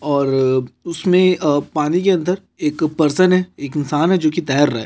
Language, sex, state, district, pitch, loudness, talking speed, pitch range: Hindi, male, Chhattisgarh, Korba, 155 Hz, -17 LUFS, 210 wpm, 145-180 Hz